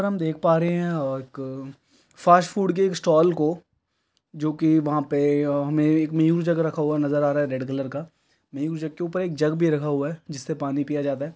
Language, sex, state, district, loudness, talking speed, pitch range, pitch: Hindi, male, Uttar Pradesh, Deoria, -23 LUFS, 240 wpm, 145-165 Hz, 155 Hz